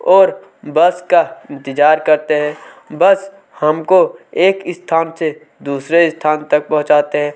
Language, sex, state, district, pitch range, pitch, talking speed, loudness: Hindi, male, Chhattisgarh, Kabirdham, 150-180 Hz, 155 Hz, 130 wpm, -14 LUFS